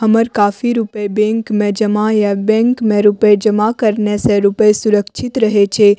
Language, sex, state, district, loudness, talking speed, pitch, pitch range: Maithili, female, Bihar, Madhepura, -13 LUFS, 170 wpm, 215 Hz, 205-220 Hz